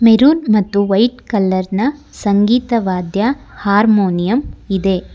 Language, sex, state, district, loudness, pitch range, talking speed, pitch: Kannada, female, Karnataka, Bangalore, -15 LUFS, 195-235 Hz, 80 wpm, 205 Hz